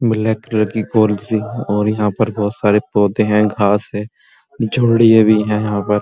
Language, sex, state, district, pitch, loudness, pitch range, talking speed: Hindi, male, Uttar Pradesh, Muzaffarnagar, 105 Hz, -15 LUFS, 105-110 Hz, 160 wpm